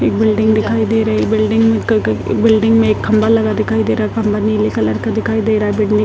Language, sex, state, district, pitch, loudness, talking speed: Hindi, female, Bihar, Purnia, 215 Hz, -14 LUFS, 295 wpm